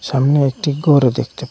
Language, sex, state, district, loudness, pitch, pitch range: Bengali, male, Assam, Hailakandi, -15 LUFS, 140 Hz, 135-145 Hz